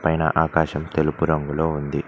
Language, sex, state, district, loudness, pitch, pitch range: Telugu, male, Telangana, Mahabubabad, -22 LUFS, 80 Hz, 75-80 Hz